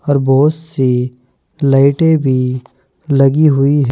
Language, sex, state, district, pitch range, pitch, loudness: Hindi, male, Uttar Pradesh, Saharanpur, 130-150 Hz, 135 Hz, -13 LUFS